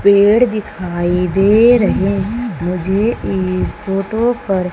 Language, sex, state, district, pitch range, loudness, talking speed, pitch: Hindi, female, Madhya Pradesh, Umaria, 185-220 Hz, -15 LUFS, 100 wpm, 195 Hz